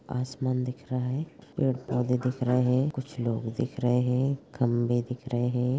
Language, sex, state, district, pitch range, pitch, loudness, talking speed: Hindi, female, Chhattisgarh, Rajnandgaon, 125-130 Hz, 125 Hz, -28 LUFS, 175 wpm